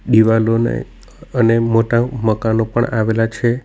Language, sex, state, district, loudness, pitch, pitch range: Gujarati, male, Gujarat, Navsari, -16 LUFS, 115 Hz, 110-120 Hz